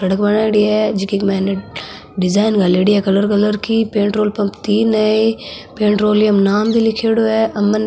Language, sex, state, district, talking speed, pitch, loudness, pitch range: Marwari, female, Rajasthan, Nagaur, 165 wpm, 210 Hz, -15 LUFS, 200-220 Hz